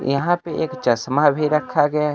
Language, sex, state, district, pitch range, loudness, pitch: Hindi, male, Bihar, Kaimur, 140-155 Hz, -19 LUFS, 150 Hz